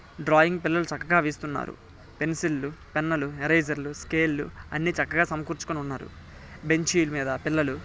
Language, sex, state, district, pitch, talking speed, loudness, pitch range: Telugu, male, Telangana, Nalgonda, 155 Hz, 155 wpm, -26 LUFS, 140-160 Hz